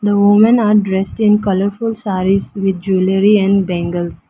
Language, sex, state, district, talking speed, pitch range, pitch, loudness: English, female, Arunachal Pradesh, Lower Dibang Valley, 155 wpm, 190-210 Hz, 195 Hz, -14 LUFS